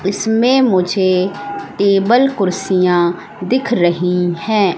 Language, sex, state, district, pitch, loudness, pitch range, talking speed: Hindi, female, Madhya Pradesh, Katni, 195 Hz, -15 LUFS, 180-225 Hz, 90 wpm